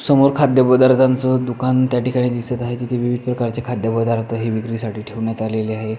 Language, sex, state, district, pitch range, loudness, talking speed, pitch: Marathi, male, Maharashtra, Pune, 115-130 Hz, -18 LUFS, 170 wpm, 120 Hz